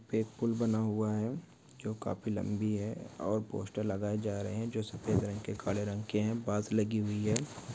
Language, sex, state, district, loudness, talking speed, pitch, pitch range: Hindi, male, West Bengal, Malda, -35 LUFS, 210 wpm, 110 Hz, 105-110 Hz